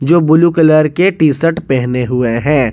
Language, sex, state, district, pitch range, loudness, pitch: Hindi, male, Jharkhand, Garhwa, 130-165 Hz, -12 LUFS, 155 Hz